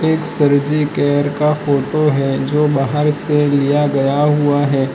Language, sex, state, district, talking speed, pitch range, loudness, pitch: Hindi, male, Gujarat, Valsad, 170 wpm, 140-150 Hz, -15 LUFS, 145 Hz